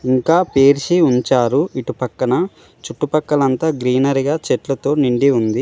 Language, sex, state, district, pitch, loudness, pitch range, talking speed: Telugu, male, Telangana, Mahabubabad, 140 Hz, -16 LUFS, 130-150 Hz, 105 wpm